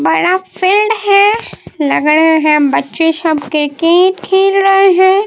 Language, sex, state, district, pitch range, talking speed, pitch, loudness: Hindi, male, Bihar, Katihar, 310-390 Hz, 125 wpm, 365 Hz, -11 LUFS